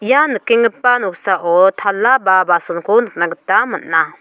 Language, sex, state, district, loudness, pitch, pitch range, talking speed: Garo, female, Meghalaya, South Garo Hills, -14 LUFS, 200 Hz, 175-240 Hz, 130 wpm